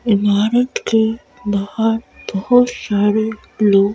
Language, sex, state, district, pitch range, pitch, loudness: Hindi, female, Madhya Pradesh, Bhopal, 205-235 Hz, 220 Hz, -17 LUFS